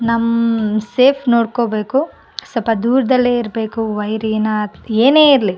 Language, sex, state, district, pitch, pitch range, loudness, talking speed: Kannada, female, Karnataka, Bellary, 230 Hz, 215-250 Hz, -15 LUFS, 120 wpm